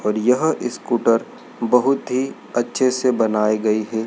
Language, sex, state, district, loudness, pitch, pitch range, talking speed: Hindi, male, Madhya Pradesh, Dhar, -19 LUFS, 120 Hz, 110-130 Hz, 145 wpm